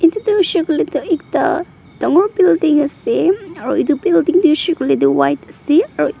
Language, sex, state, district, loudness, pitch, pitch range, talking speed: Nagamese, female, Nagaland, Dimapur, -15 LUFS, 335 Hz, 300-370 Hz, 185 wpm